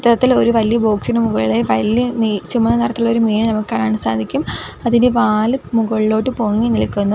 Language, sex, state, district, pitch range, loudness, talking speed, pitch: Malayalam, female, Kerala, Kollam, 210-235 Hz, -16 LUFS, 160 wpm, 225 Hz